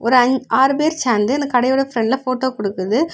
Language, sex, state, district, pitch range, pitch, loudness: Tamil, female, Tamil Nadu, Kanyakumari, 230-270 Hz, 255 Hz, -17 LUFS